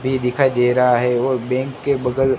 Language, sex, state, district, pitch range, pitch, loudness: Hindi, male, Gujarat, Gandhinagar, 125-135 Hz, 130 Hz, -18 LUFS